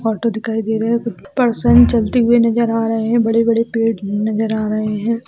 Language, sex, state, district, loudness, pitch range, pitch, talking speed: Hindi, female, Chhattisgarh, Raigarh, -16 LUFS, 220-235 Hz, 225 Hz, 225 wpm